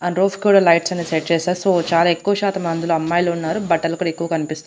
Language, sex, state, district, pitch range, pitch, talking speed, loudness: Telugu, female, Andhra Pradesh, Annamaya, 165-185 Hz, 170 Hz, 220 wpm, -18 LUFS